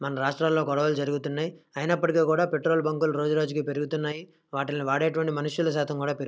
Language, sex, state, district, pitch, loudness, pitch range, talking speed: Telugu, male, Andhra Pradesh, Krishna, 150 Hz, -27 LUFS, 145-160 Hz, 180 wpm